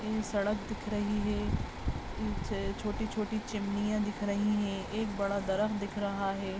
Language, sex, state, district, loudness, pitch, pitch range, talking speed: Hindi, female, Uttar Pradesh, Ghazipur, -34 LUFS, 205 Hz, 195-210 Hz, 145 wpm